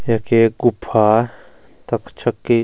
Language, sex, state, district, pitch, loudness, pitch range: Garhwali, male, Uttarakhand, Uttarkashi, 115 Hz, -17 LUFS, 110-120 Hz